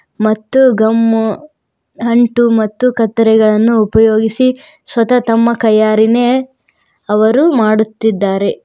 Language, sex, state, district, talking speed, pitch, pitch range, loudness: Kannada, female, Karnataka, Koppal, 75 wpm, 225 Hz, 220-250 Hz, -12 LUFS